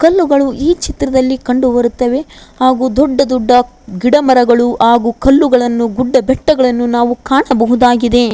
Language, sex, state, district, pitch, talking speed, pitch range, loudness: Kannada, female, Karnataka, Koppal, 255 Hz, 115 wpm, 240-275 Hz, -11 LUFS